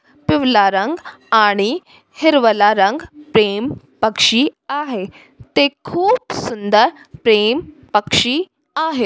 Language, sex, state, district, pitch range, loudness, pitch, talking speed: Marathi, female, Maharashtra, Sindhudurg, 210-300 Hz, -16 LUFS, 240 Hz, 95 wpm